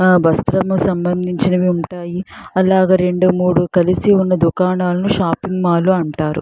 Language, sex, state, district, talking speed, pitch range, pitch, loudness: Telugu, female, Andhra Pradesh, Chittoor, 110 wpm, 175-185 Hz, 180 Hz, -15 LUFS